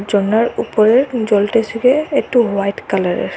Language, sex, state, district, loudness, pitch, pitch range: Bengali, female, Assam, Hailakandi, -15 LUFS, 220 Hz, 200-240 Hz